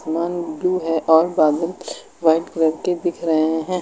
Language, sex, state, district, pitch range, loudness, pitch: Hindi, female, Uttar Pradesh, Lucknow, 160-175 Hz, -19 LUFS, 165 Hz